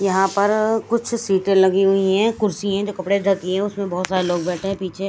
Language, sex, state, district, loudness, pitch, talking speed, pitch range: Hindi, female, Chandigarh, Chandigarh, -19 LUFS, 195 Hz, 235 wpm, 190-205 Hz